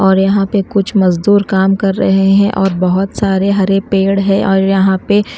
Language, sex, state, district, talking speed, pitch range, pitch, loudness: Hindi, female, Odisha, Nuapada, 210 wpm, 190-200 Hz, 195 Hz, -12 LUFS